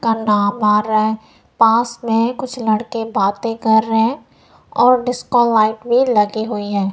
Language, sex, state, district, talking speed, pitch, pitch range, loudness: Hindi, female, Punjab, Kapurthala, 145 wpm, 225 Hz, 215-235 Hz, -16 LUFS